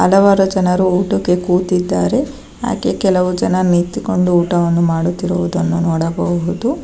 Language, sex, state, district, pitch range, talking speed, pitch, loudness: Kannada, female, Karnataka, Bangalore, 175-185 Hz, 95 wpm, 180 Hz, -15 LUFS